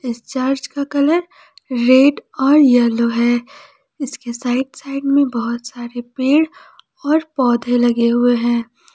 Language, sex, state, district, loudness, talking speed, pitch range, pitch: Hindi, female, Jharkhand, Palamu, -17 LUFS, 135 wpm, 240-285 Hz, 260 Hz